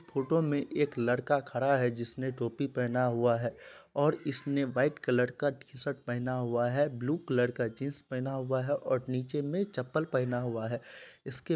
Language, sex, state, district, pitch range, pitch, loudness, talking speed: Hindi, male, Bihar, Supaul, 125-145 Hz, 130 Hz, -32 LUFS, 185 wpm